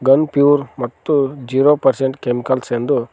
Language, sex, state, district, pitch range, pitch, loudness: Kannada, male, Karnataka, Koppal, 125-145 Hz, 135 Hz, -16 LUFS